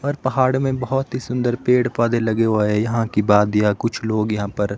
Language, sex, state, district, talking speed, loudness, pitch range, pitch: Hindi, male, Himachal Pradesh, Shimla, 225 wpm, -19 LUFS, 105-125 Hz, 115 Hz